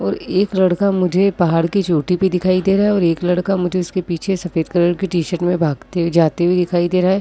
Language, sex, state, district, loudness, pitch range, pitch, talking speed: Hindi, female, Uttar Pradesh, Muzaffarnagar, -17 LUFS, 175-190 Hz, 180 Hz, 250 wpm